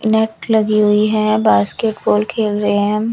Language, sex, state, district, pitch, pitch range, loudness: Hindi, female, Chandigarh, Chandigarh, 215 Hz, 205-220 Hz, -15 LUFS